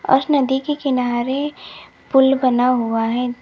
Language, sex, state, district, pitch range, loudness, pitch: Hindi, female, Uttar Pradesh, Lalitpur, 245-275 Hz, -18 LUFS, 260 Hz